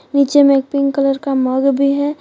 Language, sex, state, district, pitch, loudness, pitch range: Hindi, female, Jharkhand, Deoghar, 275 Hz, -14 LUFS, 275-280 Hz